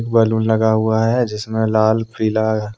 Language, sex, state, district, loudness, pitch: Hindi, male, Jharkhand, Deoghar, -17 LUFS, 110 Hz